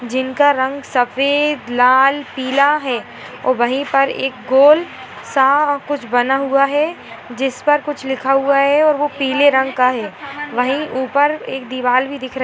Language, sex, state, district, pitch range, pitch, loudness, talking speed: Hindi, female, Bihar, Purnia, 260-290 Hz, 270 Hz, -16 LUFS, 170 wpm